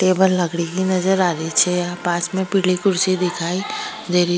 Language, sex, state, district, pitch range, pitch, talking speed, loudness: Rajasthani, female, Rajasthan, Churu, 175-185 Hz, 180 Hz, 165 wpm, -19 LUFS